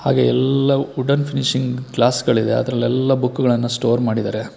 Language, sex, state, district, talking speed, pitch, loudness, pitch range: Kannada, male, Karnataka, Bangalore, 145 wpm, 125 Hz, -18 LUFS, 120-135 Hz